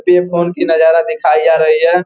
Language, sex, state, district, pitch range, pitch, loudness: Hindi, male, Bihar, Gopalganj, 160-180 Hz, 170 Hz, -11 LUFS